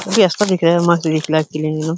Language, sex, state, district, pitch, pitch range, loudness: Hindi, male, Uttar Pradesh, Hamirpur, 160 Hz, 155-170 Hz, -16 LUFS